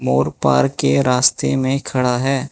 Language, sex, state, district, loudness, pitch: Hindi, male, Manipur, Imphal West, -17 LUFS, 125 Hz